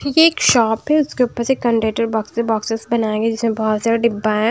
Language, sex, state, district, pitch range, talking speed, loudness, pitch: Hindi, female, Punjab, Kapurthala, 220-240 Hz, 255 wpm, -17 LUFS, 230 Hz